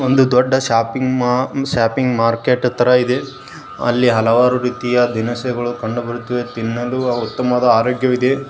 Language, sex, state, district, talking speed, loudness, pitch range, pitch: Kannada, male, Karnataka, Bijapur, 105 wpm, -16 LUFS, 120-125 Hz, 125 Hz